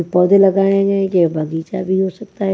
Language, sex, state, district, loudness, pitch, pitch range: Hindi, female, Maharashtra, Washim, -15 LUFS, 190 Hz, 180-195 Hz